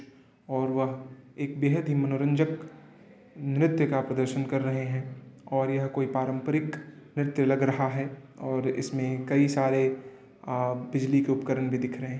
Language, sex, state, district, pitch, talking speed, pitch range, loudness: Hindi, male, Uttar Pradesh, Varanasi, 135 Hz, 155 wpm, 130-140 Hz, -28 LUFS